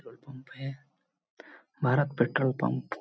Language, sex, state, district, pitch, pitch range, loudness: Hindi, male, Jharkhand, Jamtara, 135 Hz, 125-140 Hz, -30 LUFS